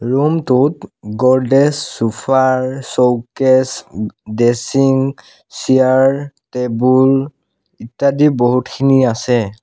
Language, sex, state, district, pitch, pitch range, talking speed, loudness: Assamese, male, Assam, Sonitpur, 130 Hz, 120-135 Hz, 75 wpm, -14 LUFS